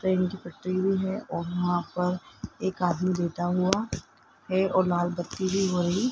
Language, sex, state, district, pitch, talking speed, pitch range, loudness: Hindi, male, Rajasthan, Jaipur, 185 Hz, 185 wpm, 175-190 Hz, -28 LUFS